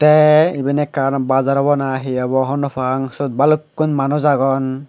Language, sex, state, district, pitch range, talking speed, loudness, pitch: Chakma, male, Tripura, Unakoti, 135-145 Hz, 185 wpm, -16 LUFS, 140 Hz